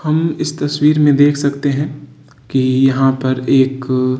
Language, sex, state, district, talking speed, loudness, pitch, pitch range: Hindi, male, Uttar Pradesh, Varanasi, 170 wpm, -15 LUFS, 140 Hz, 130-145 Hz